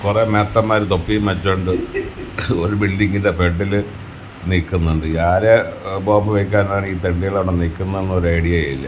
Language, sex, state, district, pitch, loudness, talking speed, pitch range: Malayalam, male, Kerala, Kasaragod, 95 Hz, -18 LUFS, 130 wpm, 90-105 Hz